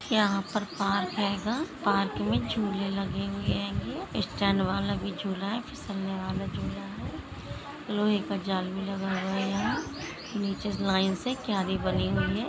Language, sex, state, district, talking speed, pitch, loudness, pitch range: Hindi, female, Maharashtra, Dhule, 175 wpm, 195 Hz, -30 LUFS, 190-205 Hz